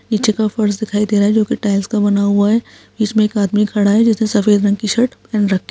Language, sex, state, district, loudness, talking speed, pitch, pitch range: Hindi, female, Bihar, Saharsa, -15 LUFS, 295 wpm, 210 Hz, 205-220 Hz